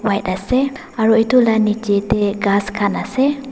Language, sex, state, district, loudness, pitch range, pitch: Nagamese, female, Nagaland, Dimapur, -17 LUFS, 200-250 Hz, 220 Hz